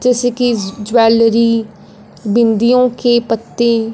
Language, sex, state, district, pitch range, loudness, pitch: Hindi, female, Punjab, Fazilka, 225-240 Hz, -13 LUFS, 230 Hz